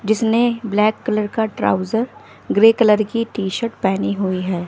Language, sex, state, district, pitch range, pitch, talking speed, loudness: Hindi, female, Bihar, West Champaran, 195-225 Hz, 215 Hz, 165 wpm, -18 LUFS